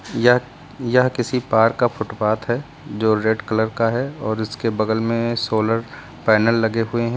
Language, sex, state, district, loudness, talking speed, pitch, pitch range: Hindi, male, Uttar Pradesh, Lucknow, -20 LUFS, 175 wpm, 115 Hz, 110-125 Hz